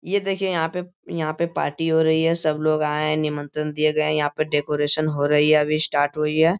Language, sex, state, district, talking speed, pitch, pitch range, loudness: Hindi, male, Bihar, Jamui, 255 wpm, 155 Hz, 150-160 Hz, -21 LUFS